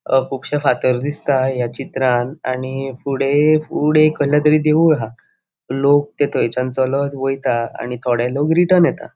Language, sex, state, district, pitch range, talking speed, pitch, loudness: Konkani, male, Goa, North and South Goa, 130-150 Hz, 150 wpm, 135 Hz, -17 LUFS